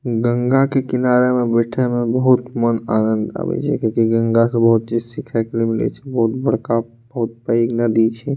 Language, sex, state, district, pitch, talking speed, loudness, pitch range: Maithili, male, Bihar, Purnia, 115 Hz, 200 wpm, -18 LUFS, 115-125 Hz